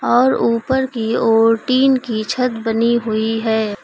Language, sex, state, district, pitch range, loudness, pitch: Hindi, female, Uttar Pradesh, Lucknow, 225-250 Hz, -16 LUFS, 230 Hz